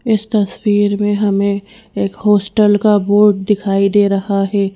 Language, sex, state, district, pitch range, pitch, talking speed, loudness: Hindi, female, Madhya Pradesh, Bhopal, 200-210 Hz, 205 Hz, 150 wpm, -14 LUFS